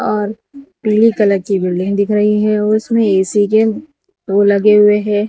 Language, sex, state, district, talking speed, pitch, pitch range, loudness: Hindi, female, Gujarat, Valsad, 180 wpm, 210 Hz, 205-220 Hz, -13 LUFS